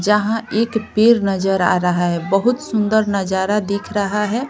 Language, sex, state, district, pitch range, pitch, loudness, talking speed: Hindi, female, Bihar, Patna, 195-220 Hz, 210 Hz, -17 LUFS, 185 wpm